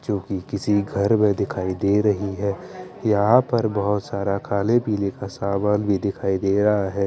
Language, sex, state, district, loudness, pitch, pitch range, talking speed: Hindi, male, Bihar, Kaimur, -22 LUFS, 100 Hz, 100-105 Hz, 185 wpm